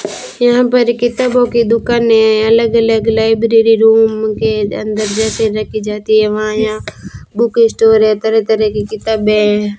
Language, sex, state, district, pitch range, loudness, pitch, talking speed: Hindi, female, Rajasthan, Bikaner, 215-230 Hz, -12 LUFS, 220 Hz, 160 wpm